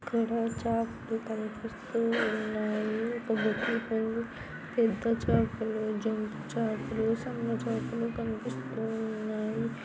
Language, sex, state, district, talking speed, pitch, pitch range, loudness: Telugu, female, Andhra Pradesh, Anantapur, 95 wpm, 220 Hz, 215-230 Hz, -32 LUFS